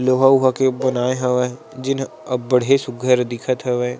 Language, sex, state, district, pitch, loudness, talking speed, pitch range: Chhattisgarhi, male, Chhattisgarh, Sarguja, 130 Hz, -19 LUFS, 165 wpm, 125-130 Hz